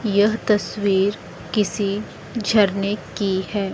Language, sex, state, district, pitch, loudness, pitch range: Hindi, female, Chandigarh, Chandigarh, 205 Hz, -21 LUFS, 195-210 Hz